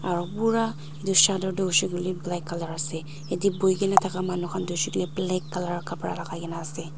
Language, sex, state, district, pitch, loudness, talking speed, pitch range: Nagamese, female, Nagaland, Dimapur, 175 Hz, -26 LUFS, 215 wpm, 170-190 Hz